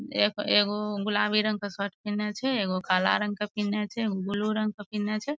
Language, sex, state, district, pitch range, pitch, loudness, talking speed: Maithili, female, Bihar, Madhepura, 205-215 Hz, 210 Hz, -28 LUFS, 235 wpm